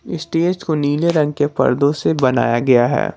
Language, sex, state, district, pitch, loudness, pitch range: Hindi, male, Jharkhand, Garhwa, 145 Hz, -16 LUFS, 130-160 Hz